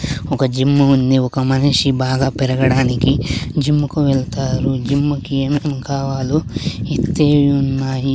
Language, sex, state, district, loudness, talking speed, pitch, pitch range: Telugu, male, Andhra Pradesh, Sri Satya Sai, -16 LUFS, 110 wpm, 135 Hz, 130-140 Hz